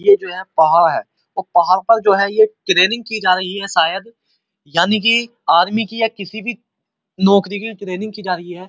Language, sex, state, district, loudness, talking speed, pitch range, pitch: Hindi, male, Uttar Pradesh, Muzaffarnagar, -16 LUFS, 205 wpm, 185-220 Hz, 200 Hz